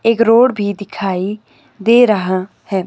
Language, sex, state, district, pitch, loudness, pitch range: Hindi, male, Himachal Pradesh, Shimla, 205 Hz, -14 LUFS, 190-230 Hz